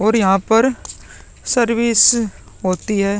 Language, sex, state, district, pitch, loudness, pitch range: Hindi, male, Bihar, Vaishali, 220 Hz, -15 LUFS, 200-235 Hz